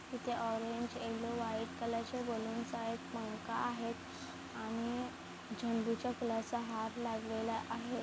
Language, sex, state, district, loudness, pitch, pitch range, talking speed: Marathi, female, Maharashtra, Chandrapur, -40 LUFS, 230 Hz, 225-240 Hz, 120 wpm